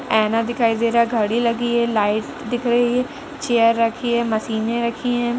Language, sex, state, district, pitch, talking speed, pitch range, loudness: Hindi, female, Uttar Pradesh, Etah, 235 Hz, 200 wpm, 225-240 Hz, -19 LUFS